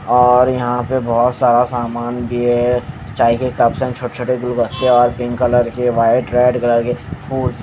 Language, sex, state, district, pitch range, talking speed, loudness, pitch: Hindi, male, Haryana, Jhajjar, 120-125 Hz, 190 wpm, -16 LUFS, 125 Hz